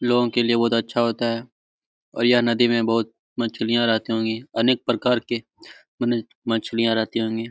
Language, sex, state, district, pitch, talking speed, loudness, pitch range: Hindi, male, Jharkhand, Jamtara, 115 Hz, 170 wpm, -22 LUFS, 115-120 Hz